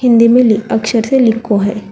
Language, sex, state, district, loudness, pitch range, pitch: Hindi, female, Telangana, Hyderabad, -11 LUFS, 215-240 Hz, 225 Hz